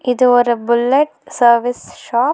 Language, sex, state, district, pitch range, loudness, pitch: Tamil, female, Tamil Nadu, Nilgiris, 235-255 Hz, -14 LUFS, 245 Hz